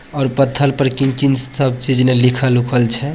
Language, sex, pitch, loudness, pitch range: Bhojpuri, male, 135 Hz, -14 LUFS, 125-135 Hz